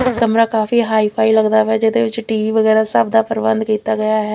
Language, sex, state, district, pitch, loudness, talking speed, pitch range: Punjabi, female, Chandigarh, Chandigarh, 220 Hz, -15 LUFS, 250 wpm, 215-225 Hz